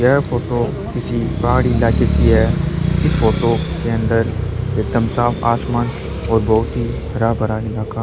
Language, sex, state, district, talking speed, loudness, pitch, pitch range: Rajasthani, male, Rajasthan, Churu, 150 wpm, -17 LUFS, 115 Hz, 110-120 Hz